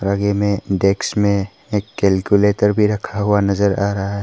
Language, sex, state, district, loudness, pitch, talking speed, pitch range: Hindi, male, Arunachal Pradesh, Papum Pare, -17 LUFS, 100 Hz, 185 wpm, 100-105 Hz